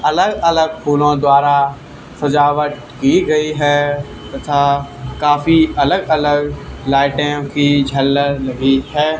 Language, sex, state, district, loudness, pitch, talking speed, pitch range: Hindi, male, Haryana, Charkhi Dadri, -15 LUFS, 145 Hz, 110 wpm, 140-150 Hz